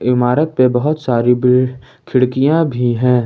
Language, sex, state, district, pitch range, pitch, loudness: Hindi, male, Jharkhand, Ranchi, 125-130 Hz, 125 Hz, -14 LUFS